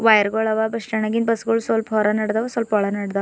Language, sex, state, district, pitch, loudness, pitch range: Kannada, female, Karnataka, Bidar, 220 Hz, -20 LUFS, 215-225 Hz